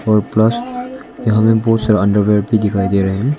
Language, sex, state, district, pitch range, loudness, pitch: Hindi, male, Arunachal Pradesh, Longding, 105-115 Hz, -14 LUFS, 110 Hz